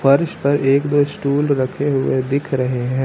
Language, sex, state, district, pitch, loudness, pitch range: Hindi, male, Uttar Pradesh, Lucknow, 140 Hz, -18 LUFS, 130-145 Hz